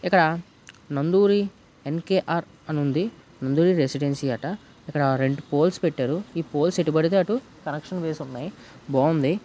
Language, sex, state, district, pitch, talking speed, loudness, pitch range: Telugu, male, Andhra Pradesh, Guntur, 160 Hz, 135 wpm, -24 LUFS, 140-180 Hz